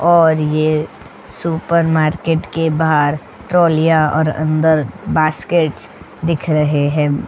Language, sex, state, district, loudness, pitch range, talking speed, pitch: Hindi, female, Goa, North and South Goa, -15 LUFS, 150-165 Hz, 100 wpm, 155 Hz